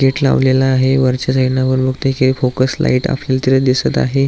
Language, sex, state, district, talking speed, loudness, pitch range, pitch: Marathi, male, Maharashtra, Aurangabad, 195 wpm, -14 LUFS, 130-135 Hz, 130 Hz